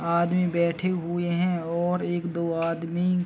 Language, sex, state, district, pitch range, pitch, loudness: Hindi, male, Chhattisgarh, Raigarh, 170-180 Hz, 170 Hz, -26 LUFS